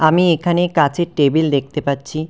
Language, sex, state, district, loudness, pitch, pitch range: Bengali, male, West Bengal, Cooch Behar, -17 LUFS, 155 Hz, 140-170 Hz